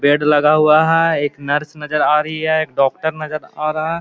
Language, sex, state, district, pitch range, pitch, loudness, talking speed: Hindi, male, Bihar, Gaya, 150-155 Hz, 155 Hz, -16 LUFS, 255 wpm